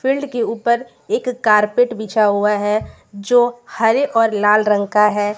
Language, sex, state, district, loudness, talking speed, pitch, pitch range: Hindi, female, Jharkhand, Garhwa, -16 LUFS, 165 wpm, 220 Hz, 210-240 Hz